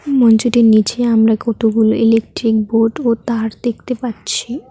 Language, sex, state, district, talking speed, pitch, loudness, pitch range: Bengali, female, West Bengal, Cooch Behar, 140 wpm, 230 Hz, -14 LUFS, 220-240 Hz